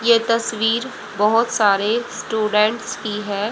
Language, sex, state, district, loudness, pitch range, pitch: Hindi, female, Haryana, Rohtak, -19 LUFS, 210-230 Hz, 220 Hz